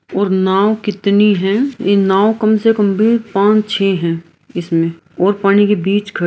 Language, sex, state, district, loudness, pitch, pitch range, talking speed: Hindi, female, Bihar, Araria, -14 LUFS, 200 Hz, 190-210 Hz, 190 wpm